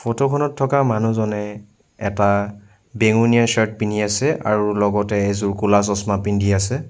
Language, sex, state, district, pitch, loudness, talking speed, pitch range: Assamese, male, Assam, Sonitpur, 105 Hz, -19 LUFS, 140 wpm, 100-115 Hz